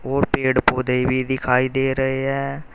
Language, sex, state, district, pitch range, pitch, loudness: Hindi, male, Uttar Pradesh, Saharanpur, 130-135 Hz, 130 Hz, -20 LUFS